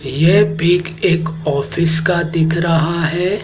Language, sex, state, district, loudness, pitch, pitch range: Hindi, male, Madhya Pradesh, Dhar, -15 LUFS, 170 Hz, 160-175 Hz